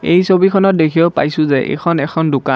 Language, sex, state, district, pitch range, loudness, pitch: Assamese, male, Assam, Kamrup Metropolitan, 150-180 Hz, -13 LUFS, 165 Hz